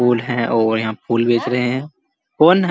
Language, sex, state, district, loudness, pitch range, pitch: Hindi, male, Uttar Pradesh, Muzaffarnagar, -17 LUFS, 115-130 Hz, 120 Hz